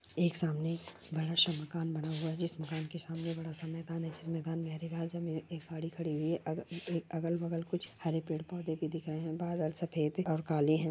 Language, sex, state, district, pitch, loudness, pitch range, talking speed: Hindi, female, Rajasthan, Churu, 165 Hz, -36 LUFS, 160-170 Hz, 225 wpm